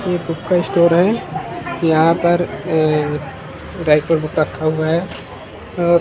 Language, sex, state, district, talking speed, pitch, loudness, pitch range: Hindi, male, Maharashtra, Mumbai Suburban, 140 wpm, 165 Hz, -17 LUFS, 155-175 Hz